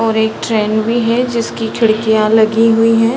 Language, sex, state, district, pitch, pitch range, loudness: Hindi, female, Bihar, Sitamarhi, 225 Hz, 220-230 Hz, -13 LUFS